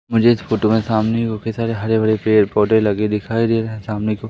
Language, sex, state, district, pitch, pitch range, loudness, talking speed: Hindi, male, Madhya Pradesh, Umaria, 110 Hz, 105-115 Hz, -17 LUFS, 265 wpm